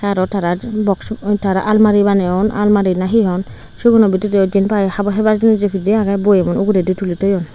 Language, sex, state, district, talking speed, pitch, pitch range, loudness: Chakma, female, Tripura, Unakoti, 175 wpm, 200 Hz, 190-210 Hz, -15 LUFS